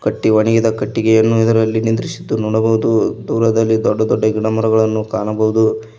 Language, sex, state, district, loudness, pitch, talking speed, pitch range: Kannada, male, Karnataka, Koppal, -15 LUFS, 110 Hz, 110 wpm, 110-115 Hz